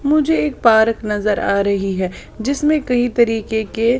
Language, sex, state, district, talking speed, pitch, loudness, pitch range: Hindi, female, Odisha, Sambalpur, 180 wpm, 225 Hz, -17 LUFS, 210-260 Hz